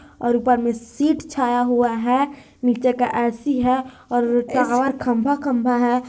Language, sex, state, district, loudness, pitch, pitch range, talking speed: Hindi, female, Chhattisgarh, Bilaspur, -20 LUFS, 245 Hz, 240-260 Hz, 150 wpm